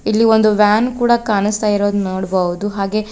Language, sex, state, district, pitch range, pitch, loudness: Kannada, female, Karnataka, Koppal, 200-215 Hz, 210 Hz, -15 LUFS